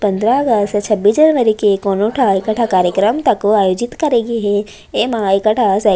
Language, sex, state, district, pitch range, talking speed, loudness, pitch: Chhattisgarhi, female, Chhattisgarh, Raigarh, 200-230 Hz, 190 wpm, -14 LUFS, 210 Hz